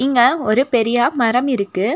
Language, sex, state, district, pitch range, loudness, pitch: Tamil, female, Tamil Nadu, Nilgiris, 225-260 Hz, -16 LUFS, 240 Hz